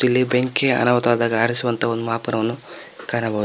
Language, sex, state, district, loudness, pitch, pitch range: Kannada, male, Karnataka, Koppal, -18 LUFS, 120 Hz, 115-125 Hz